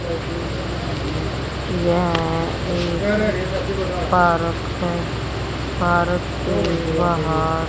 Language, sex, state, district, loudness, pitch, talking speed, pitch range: Hindi, male, Haryana, Rohtak, -21 LUFS, 170 Hz, 55 wpm, 135-175 Hz